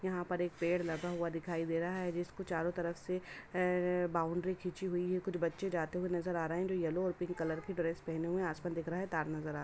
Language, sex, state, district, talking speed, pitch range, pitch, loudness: Hindi, female, Bihar, Samastipur, 275 wpm, 165-180 Hz, 175 Hz, -37 LUFS